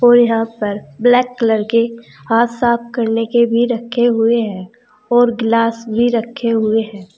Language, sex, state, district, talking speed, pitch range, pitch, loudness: Hindi, female, Uttar Pradesh, Saharanpur, 165 wpm, 225-240 Hz, 230 Hz, -15 LUFS